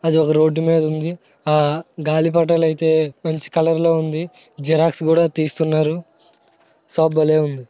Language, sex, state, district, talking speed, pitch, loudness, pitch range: Telugu, male, Andhra Pradesh, Srikakulam, 130 wpm, 160 Hz, -18 LUFS, 155-165 Hz